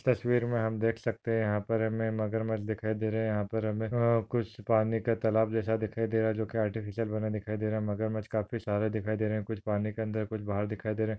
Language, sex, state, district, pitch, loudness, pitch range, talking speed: Hindi, male, Maharashtra, Solapur, 110 Hz, -31 LUFS, 110-115 Hz, 240 wpm